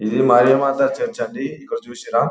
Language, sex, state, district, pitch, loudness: Telugu, male, Telangana, Nalgonda, 140 Hz, -18 LUFS